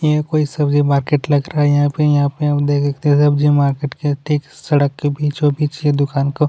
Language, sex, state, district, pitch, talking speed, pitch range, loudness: Hindi, male, Chhattisgarh, Kabirdham, 145 Hz, 205 wpm, 145-150 Hz, -16 LUFS